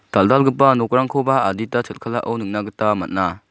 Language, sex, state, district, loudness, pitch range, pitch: Garo, male, Meghalaya, South Garo Hills, -18 LUFS, 105-130 Hz, 115 Hz